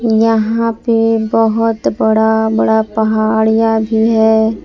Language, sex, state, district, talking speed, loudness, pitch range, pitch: Hindi, female, Jharkhand, Palamu, 105 wpm, -13 LUFS, 220-225 Hz, 220 Hz